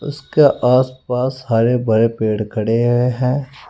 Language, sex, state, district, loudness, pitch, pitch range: Hindi, male, Uttar Pradesh, Saharanpur, -16 LUFS, 125 Hz, 115-130 Hz